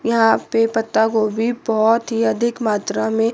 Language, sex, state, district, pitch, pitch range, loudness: Hindi, female, Chandigarh, Chandigarh, 225 Hz, 220-230 Hz, -18 LUFS